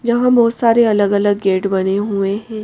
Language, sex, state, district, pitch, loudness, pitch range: Hindi, female, Madhya Pradesh, Bhopal, 205 Hz, -15 LUFS, 195-230 Hz